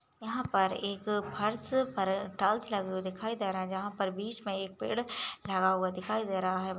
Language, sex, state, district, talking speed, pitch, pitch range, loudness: Hindi, female, Goa, North and South Goa, 205 wpm, 195 Hz, 190-210 Hz, -33 LUFS